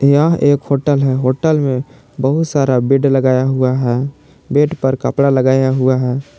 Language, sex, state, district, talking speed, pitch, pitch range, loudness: Hindi, male, Jharkhand, Palamu, 170 wpm, 135 Hz, 130-145 Hz, -14 LUFS